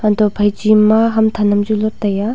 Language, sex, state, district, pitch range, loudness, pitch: Wancho, female, Arunachal Pradesh, Longding, 205-215 Hz, -14 LUFS, 215 Hz